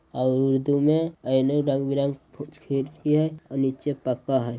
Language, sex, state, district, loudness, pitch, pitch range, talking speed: Magahi, male, Bihar, Jahanabad, -24 LUFS, 140 Hz, 130-145 Hz, 210 wpm